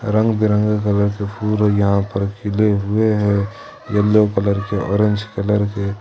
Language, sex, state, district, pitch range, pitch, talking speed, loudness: Hindi, male, Jharkhand, Ranchi, 100-105 Hz, 105 Hz, 160 wpm, -18 LUFS